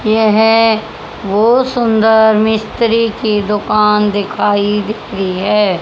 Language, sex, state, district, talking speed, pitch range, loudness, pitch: Hindi, male, Haryana, Rohtak, 115 wpm, 205-220 Hz, -12 LUFS, 215 Hz